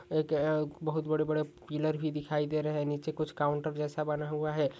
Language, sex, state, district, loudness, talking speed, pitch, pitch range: Hindi, male, Rajasthan, Churu, -33 LUFS, 215 wpm, 155 Hz, 150-155 Hz